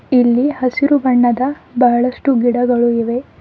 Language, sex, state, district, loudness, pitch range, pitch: Kannada, female, Karnataka, Bidar, -15 LUFS, 240-265 Hz, 250 Hz